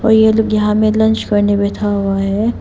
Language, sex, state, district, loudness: Hindi, female, Arunachal Pradesh, Papum Pare, -14 LUFS